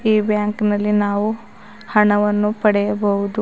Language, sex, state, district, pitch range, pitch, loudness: Kannada, female, Karnataka, Bidar, 205-210 Hz, 210 Hz, -18 LUFS